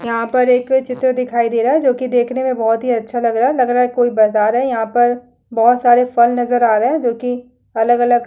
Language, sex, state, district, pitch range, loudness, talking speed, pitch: Hindi, female, Uttar Pradesh, Muzaffarnagar, 235-250 Hz, -15 LUFS, 245 wpm, 245 Hz